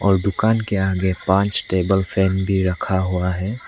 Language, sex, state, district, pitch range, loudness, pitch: Hindi, male, Arunachal Pradesh, Lower Dibang Valley, 95-100 Hz, -19 LUFS, 95 Hz